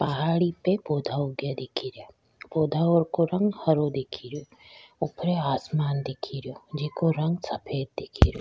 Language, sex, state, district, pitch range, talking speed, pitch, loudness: Rajasthani, female, Rajasthan, Churu, 140-170 Hz, 150 wpm, 150 Hz, -27 LUFS